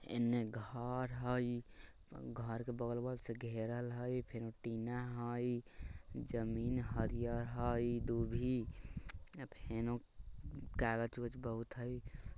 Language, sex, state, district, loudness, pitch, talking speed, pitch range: Bajjika, male, Bihar, Vaishali, -42 LUFS, 120 Hz, 100 wpm, 115-120 Hz